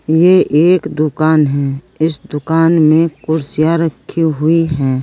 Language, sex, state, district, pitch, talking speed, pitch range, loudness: Hindi, female, Uttar Pradesh, Saharanpur, 155 Hz, 130 wpm, 150-165 Hz, -13 LUFS